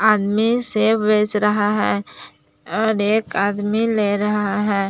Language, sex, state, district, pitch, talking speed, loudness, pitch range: Hindi, female, Jharkhand, Palamu, 210 Hz, 120 wpm, -19 LUFS, 205-220 Hz